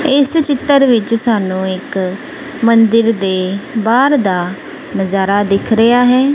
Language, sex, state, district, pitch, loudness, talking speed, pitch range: Punjabi, female, Punjab, Kapurthala, 230 Hz, -13 LUFS, 125 wpm, 195-275 Hz